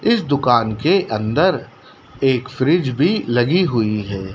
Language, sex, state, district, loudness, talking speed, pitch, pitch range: Hindi, male, Madhya Pradesh, Dhar, -18 LUFS, 140 wpm, 130 Hz, 110-170 Hz